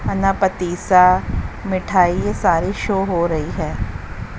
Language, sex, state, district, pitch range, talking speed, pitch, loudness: Hindi, female, Haryana, Jhajjar, 155-190 Hz, 110 wpm, 180 Hz, -18 LUFS